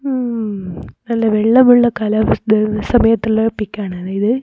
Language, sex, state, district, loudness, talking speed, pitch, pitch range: Malayalam, female, Kerala, Kozhikode, -15 LUFS, 110 wpm, 220 Hz, 210-235 Hz